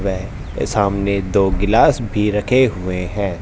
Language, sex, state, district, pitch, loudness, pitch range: Hindi, male, Haryana, Jhajjar, 100 Hz, -17 LUFS, 95-105 Hz